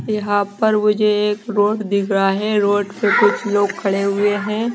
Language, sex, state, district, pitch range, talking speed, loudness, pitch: Hindi, female, Himachal Pradesh, Shimla, 200-210 Hz, 190 wpm, -17 LUFS, 205 Hz